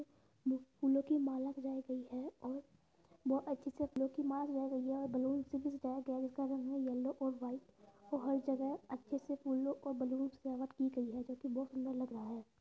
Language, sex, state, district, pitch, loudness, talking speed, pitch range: Hindi, female, Uttar Pradesh, Budaun, 265 Hz, -40 LUFS, 235 wpm, 260-275 Hz